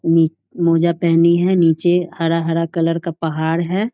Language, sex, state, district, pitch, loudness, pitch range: Hindi, female, Bihar, Jahanabad, 165 Hz, -17 LUFS, 165-175 Hz